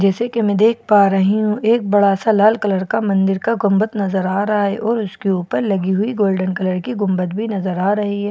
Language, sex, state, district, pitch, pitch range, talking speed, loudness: Hindi, female, Bihar, Katihar, 200 Hz, 195-215 Hz, 245 wpm, -17 LUFS